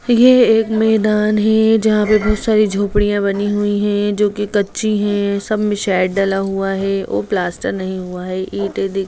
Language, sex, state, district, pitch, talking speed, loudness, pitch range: Hindi, female, Bihar, Lakhisarai, 205 Hz, 200 wpm, -16 LUFS, 195-215 Hz